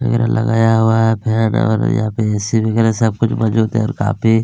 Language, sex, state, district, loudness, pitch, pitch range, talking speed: Hindi, male, Chhattisgarh, Kabirdham, -15 LUFS, 110 Hz, 110-115 Hz, 285 wpm